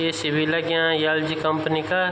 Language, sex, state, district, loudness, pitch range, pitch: Garhwali, male, Uttarakhand, Tehri Garhwal, -22 LUFS, 155-165 Hz, 160 Hz